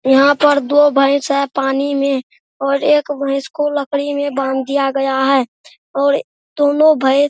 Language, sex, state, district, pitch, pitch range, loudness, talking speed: Hindi, male, Bihar, Araria, 280 Hz, 270-290 Hz, -15 LUFS, 170 wpm